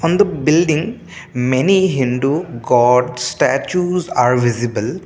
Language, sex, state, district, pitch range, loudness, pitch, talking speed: English, male, Assam, Kamrup Metropolitan, 125-180 Hz, -16 LUFS, 140 Hz, 105 wpm